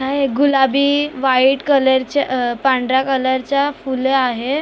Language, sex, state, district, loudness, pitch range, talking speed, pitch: Marathi, female, Maharashtra, Mumbai Suburban, -16 LUFS, 260-280 Hz, 130 wpm, 265 Hz